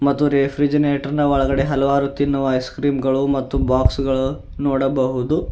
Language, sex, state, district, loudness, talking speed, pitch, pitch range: Kannada, male, Karnataka, Bidar, -19 LUFS, 130 wpm, 135 Hz, 135-140 Hz